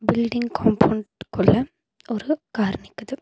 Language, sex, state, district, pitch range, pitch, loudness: Tamil, female, Tamil Nadu, Nilgiris, 220-270 Hz, 235 Hz, -22 LUFS